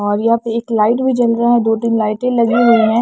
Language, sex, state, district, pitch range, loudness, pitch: Hindi, female, Maharashtra, Washim, 225-235 Hz, -14 LUFS, 230 Hz